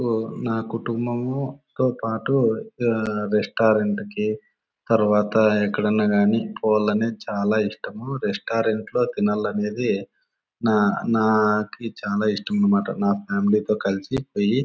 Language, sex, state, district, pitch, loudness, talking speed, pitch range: Telugu, male, Andhra Pradesh, Anantapur, 110 Hz, -22 LUFS, 100 wpm, 105-130 Hz